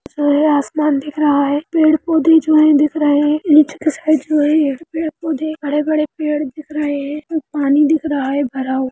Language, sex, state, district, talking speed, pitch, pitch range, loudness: Hindi, female, Bihar, Lakhisarai, 190 wpm, 300 Hz, 290-310 Hz, -15 LUFS